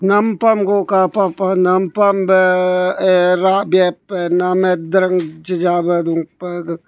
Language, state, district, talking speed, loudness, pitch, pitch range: Nyishi, Arunachal Pradesh, Papum Pare, 115 wpm, -15 LUFS, 185 Hz, 180-190 Hz